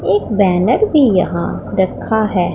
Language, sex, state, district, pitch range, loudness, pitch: Hindi, female, Punjab, Pathankot, 185-225 Hz, -15 LUFS, 200 Hz